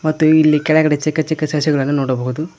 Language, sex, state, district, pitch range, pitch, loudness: Kannada, male, Karnataka, Koppal, 145-155 Hz, 155 Hz, -15 LUFS